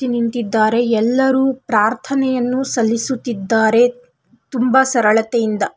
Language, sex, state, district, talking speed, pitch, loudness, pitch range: Kannada, female, Karnataka, Belgaum, 60 wpm, 240 Hz, -16 LUFS, 225-260 Hz